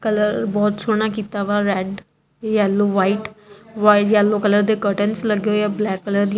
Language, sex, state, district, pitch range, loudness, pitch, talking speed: Punjabi, female, Punjab, Kapurthala, 205-215 Hz, -18 LUFS, 210 Hz, 180 wpm